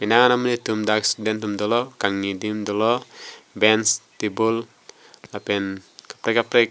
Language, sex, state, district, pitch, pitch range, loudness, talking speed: Karbi, male, Assam, Karbi Anglong, 110 Hz, 105-115 Hz, -21 LUFS, 125 wpm